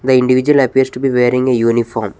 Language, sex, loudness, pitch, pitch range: English, male, -13 LUFS, 125 Hz, 120-130 Hz